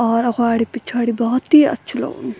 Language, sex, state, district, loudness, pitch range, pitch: Garhwali, female, Uttarakhand, Tehri Garhwal, -17 LUFS, 230-255 Hz, 240 Hz